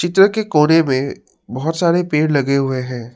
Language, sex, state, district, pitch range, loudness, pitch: Hindi, male, Assam, Sonitpur, 135-170 Hz, -16 LUFS, 150 Hz